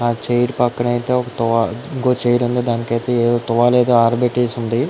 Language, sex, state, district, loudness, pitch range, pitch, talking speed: Telugu, female, Andhra Pradesh, Guntur, -17 LUFS, 115-125 Hz, 120 Hz, 160 wpm